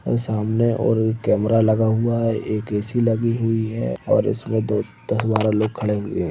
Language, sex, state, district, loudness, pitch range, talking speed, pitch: Hindi, male, Chhattisgarh, Balrampur, -21 LUFS, 105-115 Hz, 200 wpm, 110 Hz